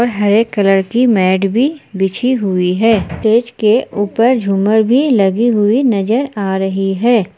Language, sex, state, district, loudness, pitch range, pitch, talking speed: Hindi, female, Jharkhand, Palamu, -13 LUFS, 195-240 Hz, 215 Hz, 155 wpm